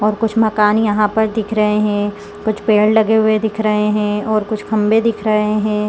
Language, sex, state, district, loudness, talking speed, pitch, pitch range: Hindi, female, Chhattisgarh, Raigarh, -15 LUFS, 215 wpm, 215 Hz, 210-220 Hz